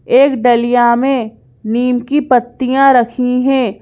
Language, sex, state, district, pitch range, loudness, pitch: Hindi, female, Madhya Pradesh, Bhopal, 240-265 Hz, -12 LUFS, 250 Hz